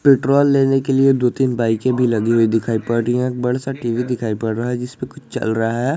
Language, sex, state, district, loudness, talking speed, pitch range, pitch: Hindi, male, Jharkhand, Garhwa, -18 LUFS, 260 wpm, 115-135 Hz, 125 Hz